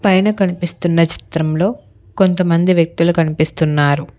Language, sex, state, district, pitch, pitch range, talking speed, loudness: Telugu, female, Telangana, Hyderabad, 170 Hz, 155-185 Hz, 85 wpm, -15 LUFS